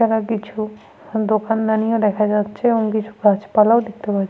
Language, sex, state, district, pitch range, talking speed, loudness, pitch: Bengali, female, Jharkhand, Sahebganj, 210-225 Hz, 140 wpm, -19 LUFS, 215 Hz